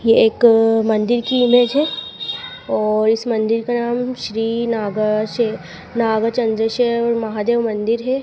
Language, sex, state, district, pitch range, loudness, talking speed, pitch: Hindi, female, Madhya Pradesh, Dhar, 220-240 Hz, -18 LUFS, 140 wpm, 230 Hz